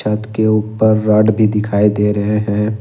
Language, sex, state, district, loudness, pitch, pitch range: Hindi, male, Jharkhand, Ranchi, -14 LUFS, 105 Hz, 105-110 Hz